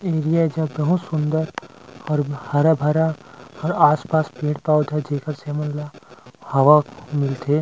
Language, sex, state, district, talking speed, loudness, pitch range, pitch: Chhattisgarhi, male, Chhattisgarh, Rajnandgaon, 120 wpm, -20 LUFS, 145-155 Hz, 150 Hz